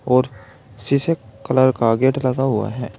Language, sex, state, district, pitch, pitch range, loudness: Hindi, male, Uttar Pradesh, Saharanpur, 130 Hz, 110-130 Hz, -19 LUFS